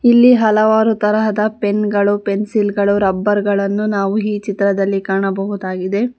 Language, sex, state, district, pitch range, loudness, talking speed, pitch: Kannada, female, Karnataka, Bangalore, 200-215 Hz, -15 LUFS, 125 wpm, 205 Hz